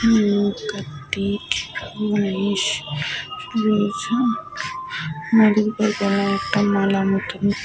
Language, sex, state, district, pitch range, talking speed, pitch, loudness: Bengali, female, Jharkhand, Sahebganj, 195-215 Hz, 30 wpm, 205 Hz, -21 LUFS